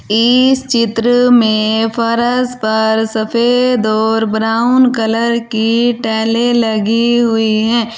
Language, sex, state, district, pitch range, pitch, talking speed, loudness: Hindi, female, Uttar Pradesh, Saharanpur, 220-240 Hz, 230 Hz, 105 wpm, -13 LUFS